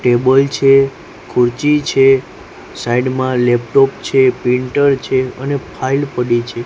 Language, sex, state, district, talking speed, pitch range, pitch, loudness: Gujarati, male, Gujarat, Gandhinagar, 125 wpm, 125-135 Hz, 130 Hz, -14 LUFS